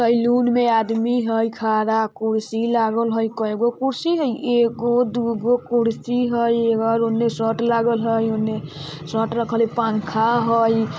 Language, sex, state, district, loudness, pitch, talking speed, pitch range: Bajjika, male, Bihar, Vaishali, -20 LUFS, 230 Hz, 140 wpm, 225-235 Hz